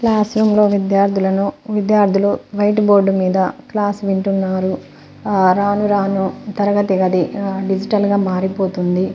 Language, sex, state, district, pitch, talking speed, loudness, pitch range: Telugu, female, Telangana, Nalgonda, 200 Hz, 105 wpm, -16 LUFS, 190-205 Hz